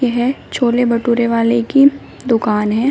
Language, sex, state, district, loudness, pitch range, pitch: Hindi, female, Uttar Pradesh, Shamli, -15 LUFS, 230-255 Hz, 240 Hz